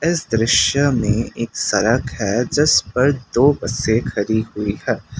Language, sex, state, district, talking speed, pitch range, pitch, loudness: Hindi, male, Assam, Kamrup Metropolitan, 150 wpm, 110-140 Hz, 115 Hz, -18 LUFS